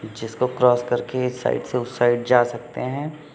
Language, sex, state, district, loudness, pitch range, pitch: Hindi, male, Uttar Pradesh, Lucknow, -22 LUFS, 120-125 Hz, 125 Hz